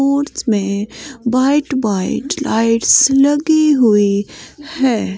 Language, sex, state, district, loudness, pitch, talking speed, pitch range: Hindi, female, Himachal Pradesh, Shimla, -14 LUFS, 265 Hz, 95 wpm, 220-290 Hz